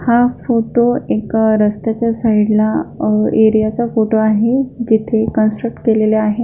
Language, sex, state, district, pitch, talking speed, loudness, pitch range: Marathi, female, Maharashtra, Solapur, 220 Hz, 140 wpm, -14 LUFS, 215-235 Hz